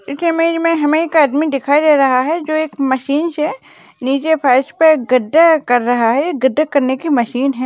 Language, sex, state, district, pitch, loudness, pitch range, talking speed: Hindi, female, Maharashtra, Dhule, 285 Hz, -14 LUFS, 260-315 Hz, 195 wpm